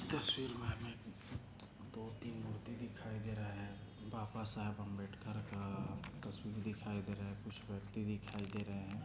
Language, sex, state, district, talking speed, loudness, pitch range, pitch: Hindi, male, Maharashtra, Aurangabad, 160 wpm, -45 LUFS, 100-110 Hz, 105 Hz